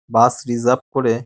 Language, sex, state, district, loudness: Bengali, male, West Bengal, Dakshin Dinajpur, -18 LUFS